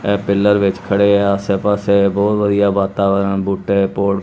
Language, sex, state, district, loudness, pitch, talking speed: Punjabi, male, Punjab, Kapurthala, -15 LUFS, 100 Hz, 155 wpm